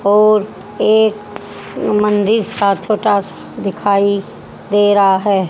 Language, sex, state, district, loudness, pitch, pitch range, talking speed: Hindi, female, Haryana, Jhajjar, -14 LUFS, 205 Hz, 200-215 Hz, 110 wpm